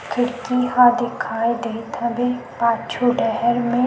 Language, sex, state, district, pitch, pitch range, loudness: Chhattisgarhi, female, Chhattisgarh, Sukma, 240 Hz, 235-245 Hz, -20 LUFS